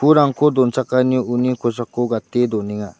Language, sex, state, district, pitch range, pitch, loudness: Garo, male, Meghalaya, West Garo Hills, 120-130 Hz, 125 Hz, -18 LUFS